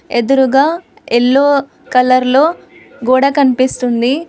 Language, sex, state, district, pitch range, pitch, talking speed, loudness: Telugu, female, Telangana, Hyderabad, 250-280 Hz, 265 Hz, 85 wpm, -12 LUFS